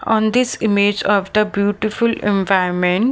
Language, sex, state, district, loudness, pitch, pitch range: English, female, Maharashtra, Mumbai Suburban, -17 LUFS, 205 Hz, 200-220 Hz